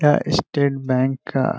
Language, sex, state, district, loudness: Hindi, male, Bihar, Gaya, -20 LUFS